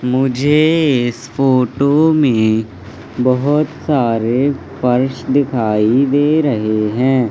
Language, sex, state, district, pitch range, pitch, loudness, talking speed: Hindi, male, Madhya Pradesh, Katni, 115-145 Hz, 130 Hz, -14 LUFS, 90 wpm